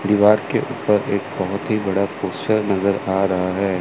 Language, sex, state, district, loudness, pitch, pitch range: Hindi, male, Chandigarh, Chandigarh, -20 LUFS, 100 Hz, 95-105 Hz